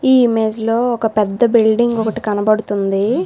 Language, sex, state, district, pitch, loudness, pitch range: Telugu, female, Telangana, Hyderabad, 225 Hz, -15 LUFS, 215-235 Hz